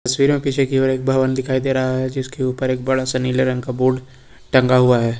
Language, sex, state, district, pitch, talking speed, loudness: Hindi, male, Uttar Pradesh, Lucknow, 130 Hz, 265 wpm, -18 LUFS